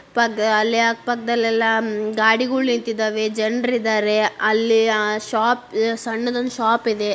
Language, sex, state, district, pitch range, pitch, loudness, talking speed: Kannada, female, Karnataka, Dharwad, 215-235 Hz, 225 Hz, -19 LUFS, 125 wpm